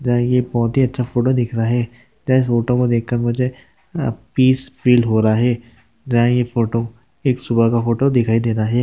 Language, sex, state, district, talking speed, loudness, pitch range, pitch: Hindi, male, Maharashtra, Sindhudurg, 205 wpm, -18 LUFS, 115-125 Hz, 120 Hz